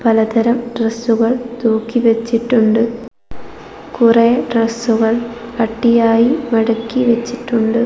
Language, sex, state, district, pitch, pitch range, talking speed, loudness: Malayalam, female, Kerala, Kozhikode, 230 Hz, 230-240 Hz, 70 wpm, -15 LUFS